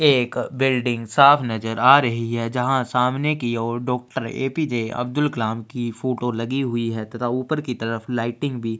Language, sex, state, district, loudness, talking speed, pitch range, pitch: Hindi, male, Chhattisgarh, Kabirdham, -21 LUFS, 195 wpm, 115-135 Hz, 125 Hz